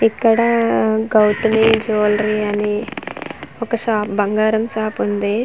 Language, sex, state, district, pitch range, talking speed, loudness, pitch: Telugu, female, Andhra Pradesh, Manyam, 210-225 Hz, 100 wpm, -17 LUFS, 220 Hz